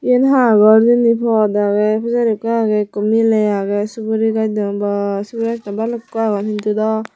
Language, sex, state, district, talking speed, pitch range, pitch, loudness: Chakma, female, Tripura, Unakoti, 185 wpm, 210-230 Hz, 220 Hz, -16 LUFS